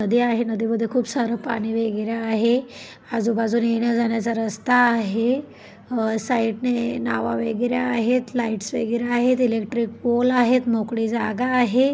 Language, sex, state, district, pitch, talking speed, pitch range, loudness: Marathi, female, Maharashtra, Pune, 235 Hz, 135 wpm, 225-245 Hz, -22 LUFS